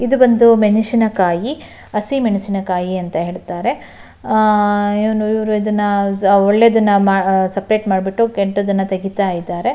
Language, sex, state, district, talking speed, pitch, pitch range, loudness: Kannada, female, Karnataka, Shimoga, 110 wpm, 205 Hz, 195-220 Hz, -15 LUFS